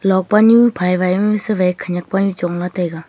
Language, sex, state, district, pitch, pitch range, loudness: Wancho, female, Arunachal Pradesh, Longding, 185 Hz, 180-210 Hz, -15 LUFS